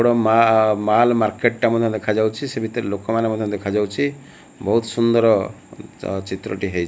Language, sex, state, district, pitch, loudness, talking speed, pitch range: Odia, male, Odisha, Malkangiri, 110 Hz, -19 LUFS, 150 wpm, 105-115 Hz